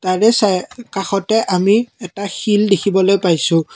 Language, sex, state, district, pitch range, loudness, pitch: Assamese, male, Assam, Kamrup Metropolitan, 185-210 Hz, -15 LUFS, 195 Hz